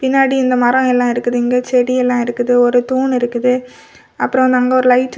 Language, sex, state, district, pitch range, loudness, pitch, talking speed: Tamil, female, Tamil Nadu, Kanyakumari, 245-255 Hz, -14 LUFS, 250 Hz, 210 wpm